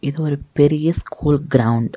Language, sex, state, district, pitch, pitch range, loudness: Tamil, female, Tamil Nadu, Nilgiris, 145 Hz, 135-155 Hz, -18 LUFS